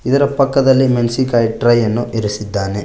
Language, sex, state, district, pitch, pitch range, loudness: Kannada, male, Karnataka, Koppal, 120 Hz, 110-130 Hz, -15 LUFS